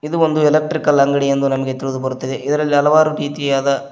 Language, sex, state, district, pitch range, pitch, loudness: Kannada, male, Karnataka, Koppal, 135-150 Hz, 140 Hz, -16 LUFS